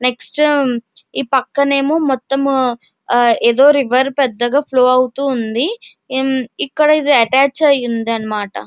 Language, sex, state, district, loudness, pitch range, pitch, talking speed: Telugu, female, Andhra Pradesh, Visakhapatnam, -14 LUFS, 240-280 Hz, 265 Hz, 120 wpm